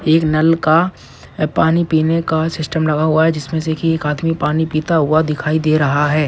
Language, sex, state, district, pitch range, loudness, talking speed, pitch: Hindi, male, Bihar, Purnia, 155-160 Hz, -16 LUFS, 200 wpm, 160 Hz